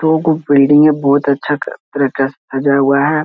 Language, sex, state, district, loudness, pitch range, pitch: Hindi, male, Bihar, Jahanabad, -13 LUFS, 140-150 Hz, 145 Hz